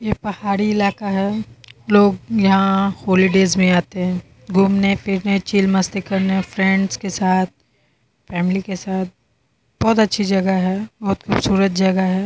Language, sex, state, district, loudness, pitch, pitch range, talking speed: Hindi, female, Bihar, Muzaffarpur, -18 LUFS, 195 Hz, 190-200 Hz, 135 wpm